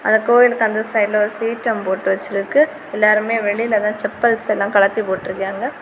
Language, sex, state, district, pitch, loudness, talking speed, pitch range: Tamil, female, Tamil Nadu, Kanyakumari, 215 Hz, -17 LUFS, 135 wpm, 200-230 Hz